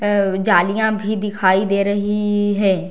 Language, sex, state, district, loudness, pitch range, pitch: Hindi, female, Bihar, Darbhanga, -17 LUFS, 195-210 Hz, 205 Hz